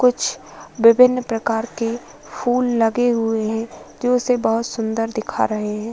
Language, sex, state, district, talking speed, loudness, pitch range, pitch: Hindi, female, Uttar Pradesh, Varanasi, 150 wpm, -19 LUFS, 225-245 Hz, 230 Hz